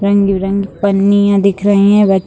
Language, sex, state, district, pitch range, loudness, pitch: Hindi, female, Bihar, Sitamarhi, 195-200 Hz, -12 LUFS, 200 Hz